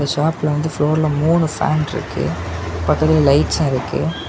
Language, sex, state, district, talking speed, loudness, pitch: Tamil, male, Tamil Nadu, Kanyakumari, 125 wpm, -18 LUFS, 150 Hz